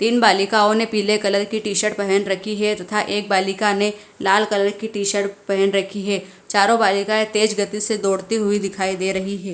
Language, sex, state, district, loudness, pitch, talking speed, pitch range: Hindi, female, Punjab, Fazilka, -19 LUFS, 205 Hz, 215 wpm, 195-210 Hz